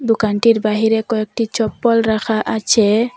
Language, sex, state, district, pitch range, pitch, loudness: Bengali, female, Assam, Hailakandi, 215-230 Hz, 220 Hz, -16 LUFS